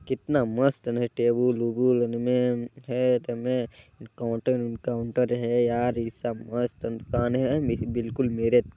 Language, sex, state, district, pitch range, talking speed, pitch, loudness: Hindi, male, Chhattisgarh, Balrampur, 115-125 Hz, 125 wpm, 120 Hz, -26 LUFS